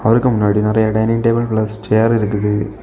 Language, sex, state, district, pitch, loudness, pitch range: Tamil, male, Tamil Nadu, Kanyakumari, 110 Hz, -15 LUFS, 105-115 Hz